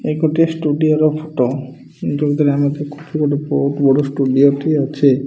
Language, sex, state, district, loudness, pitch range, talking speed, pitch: Odia, male, Odisha, Malkangiri, -16 LUFS, 140-155 Hz, 160 wpm, 145 Hz